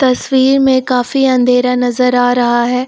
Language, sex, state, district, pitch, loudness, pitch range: Hindi, female, Uttar Pradesh, Lucknow, 250 Hz, -12 LUFS, 245-260 Hz